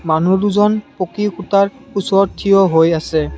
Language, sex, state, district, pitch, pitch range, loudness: Assamese, male, Assam, Kamrup Metropolitan, 195 Hz, 175-205 Hz, -15 LUFS